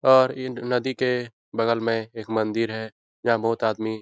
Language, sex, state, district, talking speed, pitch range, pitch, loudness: Hindi, male, Bihar, Jahanabad, 195 wpm, 110-125 Hz, 115 Hz, -24 LUFS